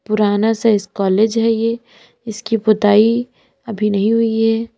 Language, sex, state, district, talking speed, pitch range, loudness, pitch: Hindi, female, Uttar Pradesh, Lalitpur, 150 wpm, 210-230 Hz, -15 LUFS, 225 Hz